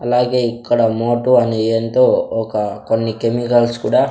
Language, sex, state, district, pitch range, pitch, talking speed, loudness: Telugu, male, Andhra Pradesh, Sri Satya Sai, 115-120 Hz, 115 Hz, 115 wpm, -16 LUFS